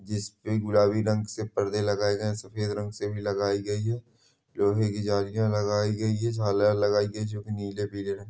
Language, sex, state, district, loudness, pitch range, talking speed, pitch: Hindi, male, Chhattisgarh, Balrampur, -27 LUFS, 105-110 Hz, 225 wpm, 105 Hz